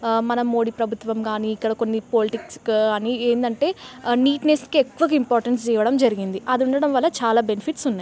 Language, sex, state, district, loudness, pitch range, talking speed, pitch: Telugu, female, Telangana, Nalgonda, -21 LUFS, 225-265 Hz, 170 wpm, 235 Hz